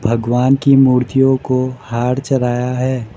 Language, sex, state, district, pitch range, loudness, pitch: Hindi, male, Arunachal Pradesh, Lower Dibang Valley, 125-135 Hz, -15 LUFS, 130 Hz